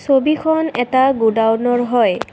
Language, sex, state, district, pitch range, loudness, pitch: Assamese, female, Assam, Kamrup Metropolitan, 235-300 Hz, -16 LUFS, 245 Hz